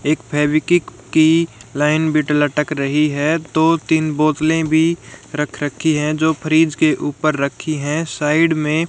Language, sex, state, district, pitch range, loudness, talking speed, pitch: Hindi, male, Haryana, Rohtak, 150-160 Hz, -17 LUFS, 155 wpm, 155 Hz